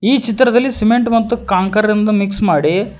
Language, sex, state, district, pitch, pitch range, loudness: Kannada, male, Karnataka, Koppal, 220 Hz, 210-240 Hz, -14 LUFS